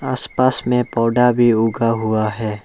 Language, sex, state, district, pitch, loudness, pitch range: Hindi, male, Arunachal Pradesh, Lower Dibang Valley, 115 Hz, -17 LUFS, 110-125 Hz